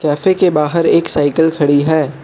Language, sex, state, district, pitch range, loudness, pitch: Hindi, male, Arunachal Pradesh, Lower Dibang Valley, 145-165 Hz, -13 LUFS, 155 Hz